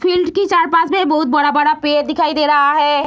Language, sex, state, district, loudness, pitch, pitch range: Hindi, female, Bihar, Sitamarhi, -14 LUFS, 305 Hz, 295-340 Hz